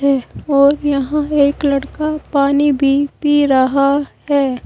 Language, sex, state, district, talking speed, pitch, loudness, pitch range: Hindi, female, Uttar Pradesh, Saharanpur, 115 wpm, 280 Hz, -15 LUFS, 275-290 Hz